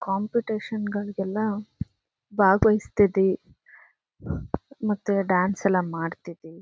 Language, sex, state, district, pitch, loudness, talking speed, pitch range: Kannada, female, Karnataka, Chamarajanagar, 200 Hz, -25 LUFS, 70 wpm, 190-210 Hz